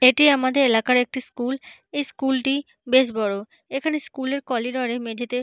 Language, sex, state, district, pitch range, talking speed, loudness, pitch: Bengali, female, West Bengal, Paschim Medinipur, 245-275 Hz, 190 wpm, -22 LUFS, 255 Hz